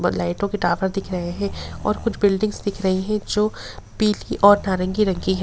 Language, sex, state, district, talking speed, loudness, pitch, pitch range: Hindi, female, Bihar, Gopalganj, 220 wpm, -21 LUFS, 200 Hz, 185-210 Hz